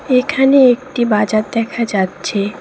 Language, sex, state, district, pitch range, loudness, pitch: Bengali, female, West Bengal, Cooch Behar, 210-255 Hz, -14 LUFS, 235 Hz